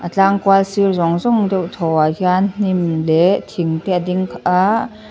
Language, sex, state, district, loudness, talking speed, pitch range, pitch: Mizo, female, Mizoram, Aizawl, -16 LUFS, 190 wpm, 170-195 Hz, 185 Hz